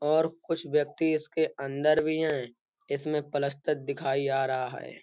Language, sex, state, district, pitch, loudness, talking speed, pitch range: Hindi, male, Uttar Pradesh, Budaun, 150 Hz, -29 LUFS, 155 wpm, 140-155 Hz